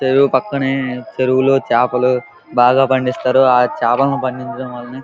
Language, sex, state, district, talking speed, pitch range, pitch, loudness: Telugu, male, Andhra Pradesh, Krishna, 130 wpm, 125-135 Hz, 130 Hz, -15 LUFS